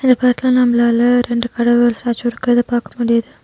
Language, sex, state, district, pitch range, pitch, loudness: Tamil, female, Tamil Nadu, Nilgiris, 235-245 Hz, 240 Hz, -15 LUFS